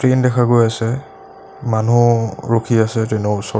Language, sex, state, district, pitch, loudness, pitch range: Assamese, male, Assam, Sonitpur, 115 Hz, -16 LUFS, 110-120 Hz